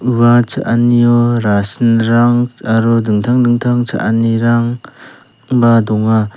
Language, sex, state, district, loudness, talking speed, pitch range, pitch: Garo, male, Meghalaya, South Garo Hills, -12 LUFS, 75 wpm, 115-120 Hz, 120 Hz